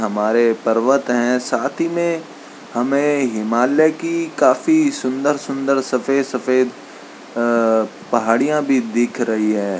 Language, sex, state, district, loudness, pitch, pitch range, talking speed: Hindi, male, Uttarakhand, Tehri Garhwal, -18 LUFS, 130 Hz, 115-145 Hz, 110 wpm